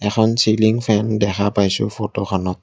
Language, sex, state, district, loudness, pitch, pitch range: Assamese, male, Assam, Kamrup Metropolitan, -18 LUFS, 105 Hz, 100-110 Hz